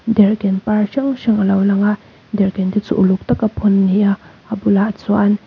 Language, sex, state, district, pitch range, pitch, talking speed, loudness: Mizo, female, Mizoram, Aizawl, 195-210 Hz, 205 Hz, 230 wpm, -16 LUFS